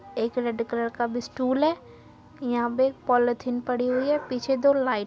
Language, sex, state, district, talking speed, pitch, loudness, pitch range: Hindi, female, Uttar Pradesh, Muzaffarnagar, 200 wpm, 250 Hz, -25 LUFS, 240-265 Hz